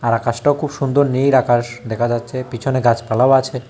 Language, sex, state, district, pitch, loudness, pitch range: Bengali, male, Tripura, West Tripura, 125 Hz, -17 LUFS, 120-135 Hz